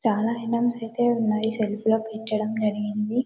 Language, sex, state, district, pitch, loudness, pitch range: Telugu, female, Telangana, Karimnagar, 220 Hz, -25 LUFS, 215-230 Hz